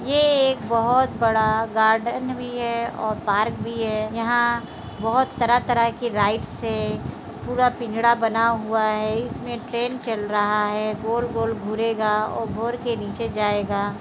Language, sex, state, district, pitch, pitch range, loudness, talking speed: Hindi, female, Bihar, Begusarai, 230 Hz, 215-240 Hz, -22 LUFS, 145 wpm